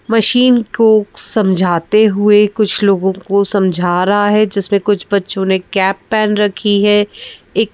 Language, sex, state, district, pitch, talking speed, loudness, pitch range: Hindi, female, Madhya Pradesh, Bhopal, 205 Hz, 145 wpm, -13 LUFS, 195-215 Hz